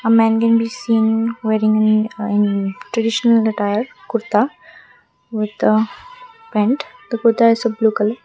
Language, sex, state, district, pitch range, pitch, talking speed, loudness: English, female, Assam, Kamrup Metropolitan, 215-230 Hz, 225 Hz, 115 wpm, -17 LUFS